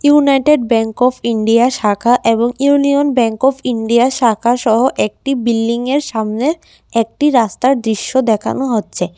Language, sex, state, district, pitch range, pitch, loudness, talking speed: Bengali, female, Tripura, West Tripura, 225-270 Hz, 240 Hz, -14 LUFS, 125 wpm